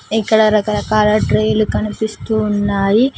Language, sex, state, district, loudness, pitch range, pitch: Telugu, female, Telangana, Mahabubabad, -15 LUFS, 200-220 Hz, 210 Hz